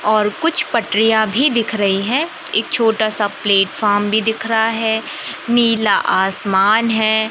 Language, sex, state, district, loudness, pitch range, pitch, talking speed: Hindi, male, Madhya Pradesh, Katni, -16 LUFS, 210-235 Hz, 220 Hz, 150 wpm